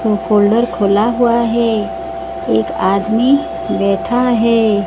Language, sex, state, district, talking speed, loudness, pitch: Hindi, female, Odisha, Sambalpur, 110 wpm, -14 LUFS, 215 Hz